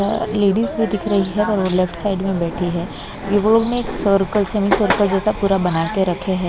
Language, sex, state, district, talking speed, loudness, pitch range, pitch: Hindi, female, Maharashtra, Mumbai Suburban, 220 wpm, -18 LUFS, 185-210 Hz, 200 Hz